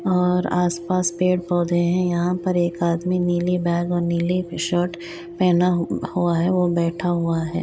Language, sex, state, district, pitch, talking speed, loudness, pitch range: Hindi, female, Bihar, East Champaran, 175 Hz, 155 wpm, -21 LUFS, 170-180 Hz